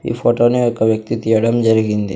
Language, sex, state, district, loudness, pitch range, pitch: Telugu, male, Andhra Pradesh, Sri Satya Sai, -15 LUFS, 110-120 Hz, 110 Hz